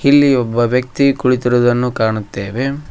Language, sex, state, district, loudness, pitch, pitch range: Kannada, male, Karnataka, Koppal, -15 LUFS, 125 Hz, 120-140 Hz